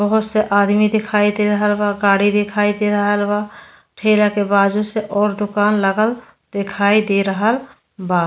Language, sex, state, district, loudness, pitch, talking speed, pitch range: Bhojpuri, female, Uttar Pradesh, Ghazipur, -17 LUFS, 205 Hz, 165 wpm, 205-210 Hz